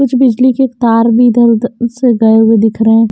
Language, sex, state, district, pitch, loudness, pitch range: Hindi, female, Haryana, Jhajjar, 235 Hz, -9 LUFS, 225-250 Hz